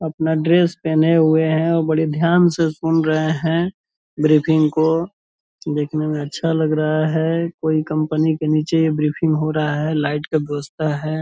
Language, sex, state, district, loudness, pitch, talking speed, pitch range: Hindi, male, Bihar, Purnia, -18 LUFS, 155 Hz, 175 wpm, 155-160 Hz